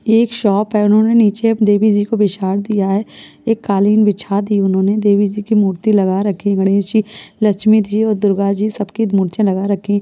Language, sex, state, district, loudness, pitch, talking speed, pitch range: Hindi, female, Uttar Pradesh, Budaun, -15 LUFS, 205 Hz, 220 wpm, 200-215 Hz